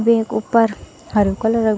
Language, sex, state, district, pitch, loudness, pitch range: Garhwali, female, Uttarakhand, Tehri Garhwal, 220 Hz, -18 LUFS, 215-230 Hz